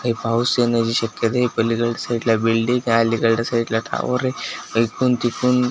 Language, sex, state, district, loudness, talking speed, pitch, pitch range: Marathi, male, Maharashtra, Washim, -20 LUFS, 190 wpm, 115 Hz, 115-125 Hz